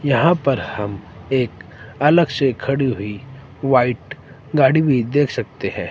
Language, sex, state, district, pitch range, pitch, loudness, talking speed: Hindi, male, Himachal Pradesh, Shimla, 115-140 Hz, 135 Hz, -19 LUFS, 140 wpm